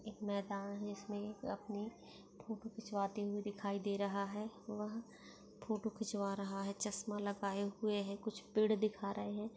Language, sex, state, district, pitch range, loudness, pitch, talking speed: Hindi, female, Bihar, Begusarai, 200-215 Hz, -41 LUFS, 205 Hz, 165 wpm